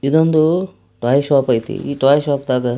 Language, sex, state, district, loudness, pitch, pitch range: Kannada, male, Karnataka, Belgaum, -16 LUFS, 140 Hz, 125-150 Hz